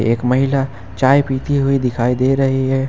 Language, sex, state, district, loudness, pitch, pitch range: Hindi, male, Jharkhand, Ranchi, -16 LUFS, 130 Hz, 125-135 Hz